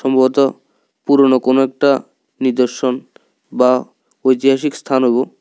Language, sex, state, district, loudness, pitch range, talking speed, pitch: Bengali, male, Tripura, South Tripura, -15 LUFS, 125-135 Hz, 90 wpm, 130 Hz